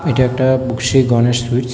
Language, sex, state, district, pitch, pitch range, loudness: Bengali, male, Tripura, West Tripura, 130 Hz, 120-130 Hz, -15 LUFS